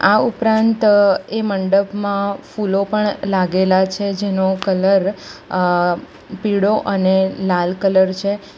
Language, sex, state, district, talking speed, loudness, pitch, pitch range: Gujarati, female, Gujarat, Valsad, 110 wpm, -17 LUFS, 195 Hz, 190-205 Hz